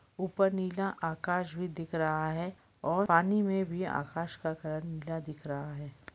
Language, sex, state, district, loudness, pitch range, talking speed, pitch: Hindi, male, Jharkhand, Jamtara, -33 LUFS, 155-185 Hz, 175 wpm, 165 Hz